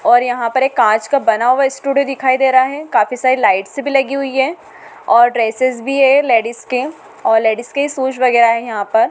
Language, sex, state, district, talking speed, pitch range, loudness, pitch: Hindi, female, Madhya Pradesh, Dhar, 225 wpm, 235-275 Hz, -14 LUFS, 260 Hz